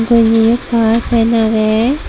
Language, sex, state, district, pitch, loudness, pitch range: Chakma, female, Tripura, Dhalai, 230 Hz, -12 LUFS, 225-235 Hz